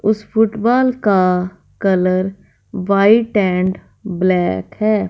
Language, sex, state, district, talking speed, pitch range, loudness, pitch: Hindi, female, Punjab, Fazilka, 95 wpm, 185-215 Hz, -16 LUFS, 195 Hz